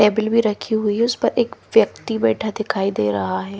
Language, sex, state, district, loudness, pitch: Hindi, female, Himachal Pradesh, Shimla, -20 LUFS, 215 Hz